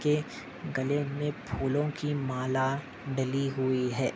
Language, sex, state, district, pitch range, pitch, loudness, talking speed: Hindi, male, Maharashtra, Dhule, 130-145 Hz, 135 Hz, -31 LUFS, 130 wpm